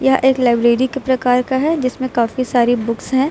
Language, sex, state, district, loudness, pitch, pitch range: Hindi, female, Uttar Pradesh, Lucknow, -16 LUFS, 255 Hz, 240-265 Hz